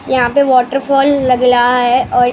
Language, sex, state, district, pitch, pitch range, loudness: Hindi, male, Maharashtra, Mumbai Suburban, 255 Hz, 245-275 Hz, -11 LUFS